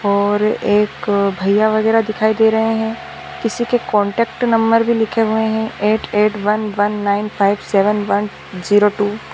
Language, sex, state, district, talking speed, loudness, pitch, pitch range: Hindi, female, Chhattisgarh, Raigarh, 175 wpm, -16 LUFS, 210 Hz, 205-220 Hz